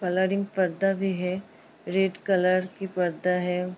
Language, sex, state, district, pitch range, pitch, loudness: Hindi, female, Uttar Pradesh, Ghazipur, 180-195 Hz, 185 Hz, -26 LUFS